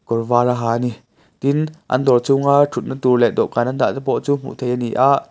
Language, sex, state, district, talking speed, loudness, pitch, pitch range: Mizo, male, Mizoram, Aizawl, 260 wpm, -18 LUFS, 125 Hz, 120-140 Hz